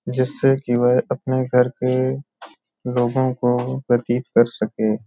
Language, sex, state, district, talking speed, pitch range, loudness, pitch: Hindi, male, Uttar Pradesh, Hamirpur, 130 wpm, 120-130 Hz, -20 LUFS, 125 Hz